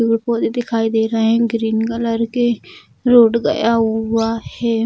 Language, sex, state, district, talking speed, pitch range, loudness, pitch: Hindi, female, Bihar, Jamui, 150 wpm, 225-235 Hz, -17 LUFS, 230 Hz